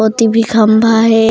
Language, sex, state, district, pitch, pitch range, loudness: Chhattisgarhi, female, Chhattisgarh, Raigarh, 225 Hz, 220-225 Hz, -10 LUFS